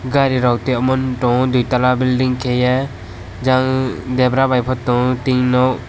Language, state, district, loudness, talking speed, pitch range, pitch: Kokborok, Tripura, West Tripura, -16 LUFS, 135 wpm, 125-130 Hz, 125 Hz